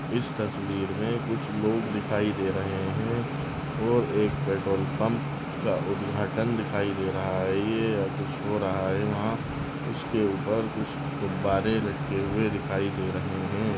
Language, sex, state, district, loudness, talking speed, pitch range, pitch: Hindi, male, Chhattisgarh, Balrampur, -28 LUFS, 155 wpm, 95-140 Hz, 110 Hz